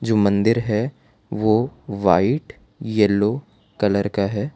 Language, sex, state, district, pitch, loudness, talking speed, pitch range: Hindi, male, Gujarat, Valsad, 105 Hz, -20 LUFS, 120 wpm, 100-115 Hz